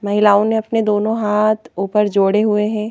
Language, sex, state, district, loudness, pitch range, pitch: Hindi, female, Madhya Pradesh, Bhopal, -16 LUFS, 205-215 Hz, 210 Hz